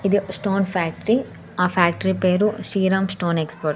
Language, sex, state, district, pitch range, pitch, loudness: Telugu, female, Andhra Pradesh, Sri Satya Sai, 175-195 Hz, 190 Hz, -21 LUFS